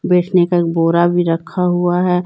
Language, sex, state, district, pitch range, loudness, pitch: Hindi, female, Jharkhand, Deoghar, 170-180 Hz, -15 LUFS, 175 Hz